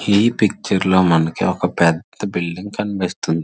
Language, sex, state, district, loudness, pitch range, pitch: Telugu, male, Andhra Pradesh, Srikakulam, -18 LUFS, 85-105 Hz, 95 Hz